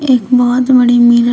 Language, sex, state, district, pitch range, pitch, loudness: Hindi, female, Uttar Pradesh, Shamli, 240-255 Hz, 245 Hz, -9 LUFS